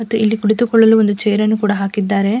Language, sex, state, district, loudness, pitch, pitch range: Kannada, female, Karnataka, Mysore, -14 LUFS, 215 Hz, 205-225 Hz